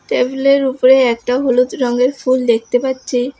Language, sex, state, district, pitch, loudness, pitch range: Bengali, female, West Bengal, Alipurduar, 255 Hz, -14 LUFS, 245-265 Hz